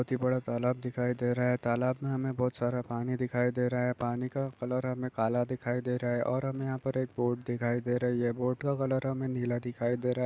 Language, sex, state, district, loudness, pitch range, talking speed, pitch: Hindi, male, Chhattisgarh, Balrampur, -32 LUFS, 120-130 Hz, 270 wpm, 125 Hz